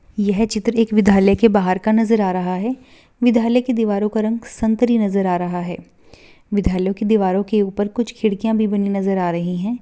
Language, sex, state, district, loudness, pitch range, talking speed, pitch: Hindi, female, Bihar, Bhagalpur, -18 LUFS, 195-225 Hz, 200 wpm, 210 Hz